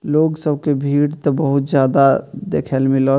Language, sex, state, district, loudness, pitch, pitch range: Maithili, male, Bihar, Purnia, -17 LUFS, 140 Hz, 135-150 Hz